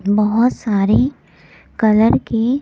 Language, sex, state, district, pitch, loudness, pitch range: Hindi, female, Delhi, New Delhi, 225 Hz, -16 LUFS, 210-240 Hz